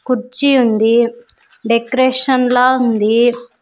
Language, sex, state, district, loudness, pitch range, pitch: Telugu, female, Andhra Pradesh, Sri Satya Sai, -13 LUFS, 230-255 Hz, 245 Hz